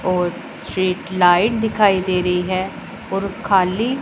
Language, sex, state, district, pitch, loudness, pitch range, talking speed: Hindi, female, Punjab, Pathankot, 185 Hz, -18 LUFS, 180-205 Hz, 135 wpm